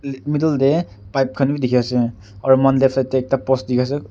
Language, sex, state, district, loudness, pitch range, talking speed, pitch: Nagamese, male, Nagaland, Kohima, -18 LUFS, 125-135 Hz, 220 wpm, 135 Hz